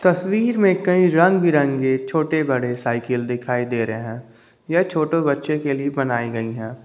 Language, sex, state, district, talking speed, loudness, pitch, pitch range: Hindi, male, Jharkhand, Ranchi, 185 wpm, -20 LUFS, 135 Hz, 120-165 Hz